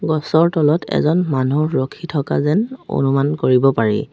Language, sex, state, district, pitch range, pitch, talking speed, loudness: Assamese, female, Assam, Sonitpur, 135-160 Hz, 150 Hz, 145 wpm, -17 LUFS